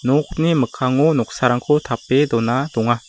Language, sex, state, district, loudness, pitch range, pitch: Garo, male, Meghalaya, West Garo Hills, -18 LUFS, 120-150 Hz, 130 Hz